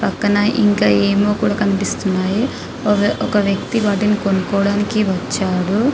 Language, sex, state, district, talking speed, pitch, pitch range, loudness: Telugu, female, Telangana, Karimnagar, 110 wpm, 205 Hz, 195-210 Hz, -17 LUFS